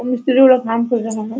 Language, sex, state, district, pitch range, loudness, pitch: Hindi, female, Bihar, Araria, 230-255 Hz, -15 LUFS, 245 Hz